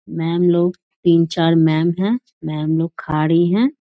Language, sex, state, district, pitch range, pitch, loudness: Hindi, female, Bihar, Jahanabad, 165-190 Hz, 170 Hz, -17 LUFS